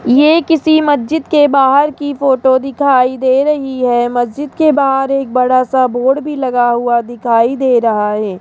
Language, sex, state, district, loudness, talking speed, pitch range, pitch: Hindi, female, Rajasthan, Jaipur, -12 LUFS, 180 wpm, 245-290 Hz, 265 Hz